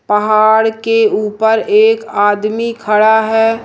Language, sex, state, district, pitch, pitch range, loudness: Hindi, female, Madhya Pradesh, Umaria, 220 Hz, 215-225 Hz, -12 LUFS